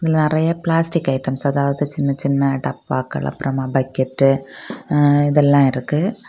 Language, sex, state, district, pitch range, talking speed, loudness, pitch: Tamil, female, Tamil Nadu, Kanyakumari, 135-155 Hz, 115 wpm, -18 LUFS, 140 Hz